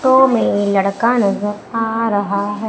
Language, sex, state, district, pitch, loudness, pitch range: Hindi, female, Madhya Pradesh, Umaria, 205 Hz, -16 LUFS, 205-230 Hz